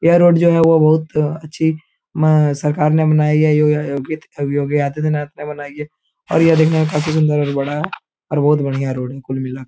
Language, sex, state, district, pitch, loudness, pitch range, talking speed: Hindi, male, Bihar, Jamui, 150 Hz, -16 LUFS, 145-155 Hz, 210 wpm